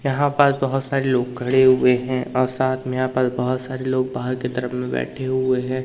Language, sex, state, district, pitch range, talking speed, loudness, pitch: Hindi, male, Madhya Pradesh, Umaria, 125-130 Hz, 235 wpm, -21 LUFS, 130 Hz